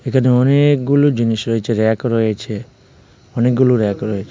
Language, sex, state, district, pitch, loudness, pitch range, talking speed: Bengali, male, Tripura, West Tripura, 120 Hz, -15 LUFS, 110-130 Hz, 155 wpm